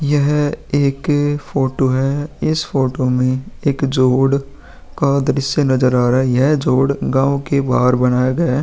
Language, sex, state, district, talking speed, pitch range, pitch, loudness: Hindi, male, Bihar, Vaishali, 165 wpm, 130-145 Hz, 135 Hz, -16 LUFS